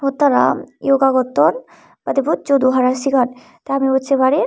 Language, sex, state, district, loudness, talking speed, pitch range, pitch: Chakma, female, Tripura, Unakoti, -16 LUFS, 150 wpm, 260-275 Hz, 270 Hz